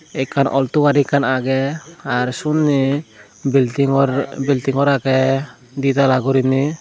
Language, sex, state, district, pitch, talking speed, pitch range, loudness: Chakma, male, Tripura, Unakoti, 135 Hz, 125 wpm, 130-140 Hz, -17 LUFS